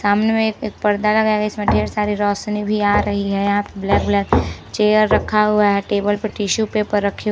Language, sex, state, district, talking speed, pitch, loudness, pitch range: Hindi, female, Chhattisgarh, Rajnandgaon, 220 wpm, 205 Hz, -18 LUFS, 200-210 Hz